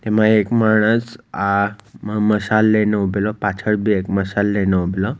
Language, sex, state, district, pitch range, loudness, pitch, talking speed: Gujarati, male, Gujarat, Valsad, 100-110 Hz, -18 LUFS, 105 Hz, 175 wpm